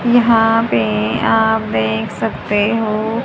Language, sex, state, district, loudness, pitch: Hindi, female, Haryana, Jhajjar, -15 LUFS, 220 Hz